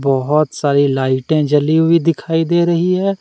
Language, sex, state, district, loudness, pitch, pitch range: Hindi, male, Jharkhand, Deoghar, -15 LUFS, 155 Hz, 140-170 Hz